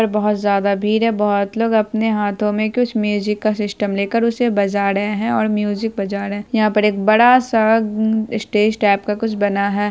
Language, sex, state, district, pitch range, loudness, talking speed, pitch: Hindi, female, Bihar, Araria, 205-220 Hz, -17 LUFS, 220 wpm, 210 Hz